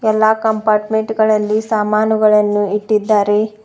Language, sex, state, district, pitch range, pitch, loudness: Kannada, female, Karnataka, Bidar, 210-220 Hz, 215 Hz, -14 LUFS